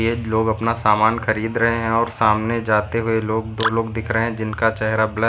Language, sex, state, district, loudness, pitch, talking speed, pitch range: Hindi, male, Uttar Pradesh, Lucknow, -19 LUFS, 110 Hz, 225 wpm, 110-115 Hz